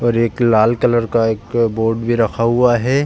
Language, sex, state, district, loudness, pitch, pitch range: Hindi, male, Uttar Pradesh, Jalaun, -15 LUFS, 115 Hz, 115-120 Hz